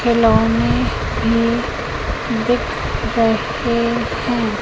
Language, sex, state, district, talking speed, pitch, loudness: Hindi, female, Madhya Pradesh, Katni, 65 wpm, 230 Hz, -18 LUFS